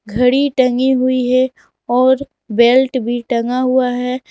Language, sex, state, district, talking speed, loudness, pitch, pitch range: Hindi, female, Jharkhand, Garhwa, 140 wpm, -15 LUFS, 255 Hz, 245-260 Hz